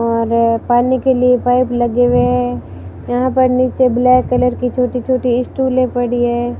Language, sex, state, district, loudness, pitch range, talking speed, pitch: Hindi, female, Rajasthan, Barmer, -14 LUFS, 240-255 Hz, 175 wpm, 245 Hz